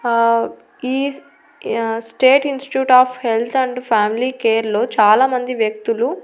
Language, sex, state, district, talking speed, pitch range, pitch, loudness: Telugu, female, Andhra Pradesh, Annamaya, 115 wpm, 225-265 Hz, 250 Hz, -16 LUFS